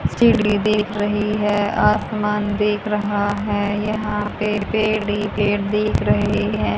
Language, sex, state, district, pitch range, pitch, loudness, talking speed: Hindi, female, Haryana, Jhajjar, 205-210 Hz, 210 Hz, -19 LUFS, 140 wpm